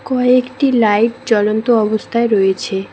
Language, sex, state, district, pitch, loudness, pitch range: Bengali, female, West Bengal, Cooch Behar, 230 Hz, -14 LUFS, 210-250 Hz